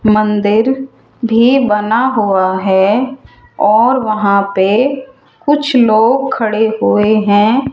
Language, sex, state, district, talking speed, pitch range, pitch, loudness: Hindi, female, Rajasthan, Jaipur, 100 wpm, 210-260 Hz, 220 Hz, -12 LUFS